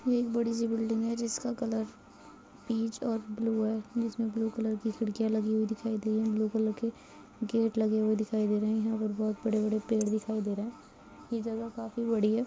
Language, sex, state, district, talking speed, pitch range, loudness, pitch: Hindi, female, Bihar, Kishanganj, 220 wpm, 215-230 Hz, -31 LUFS, 225 Hz